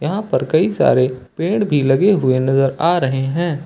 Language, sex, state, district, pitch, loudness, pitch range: Hindi, male, Uttar Pradesh, Lucknow, 150 Hz, -16 LUFS, 135-175 Hz